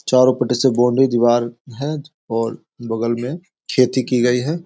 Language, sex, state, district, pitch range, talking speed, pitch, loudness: Hindi, male, Bihar, Sitamarhi, 120-135 Hz, 165 wpm, 125 Hz, -18 LUFS